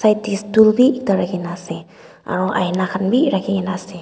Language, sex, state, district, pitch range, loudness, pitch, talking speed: Nagamese, female, Nagaland, Dimapur, 185-215 Hz, -18 LUFS, 190 Hz, 195 wpm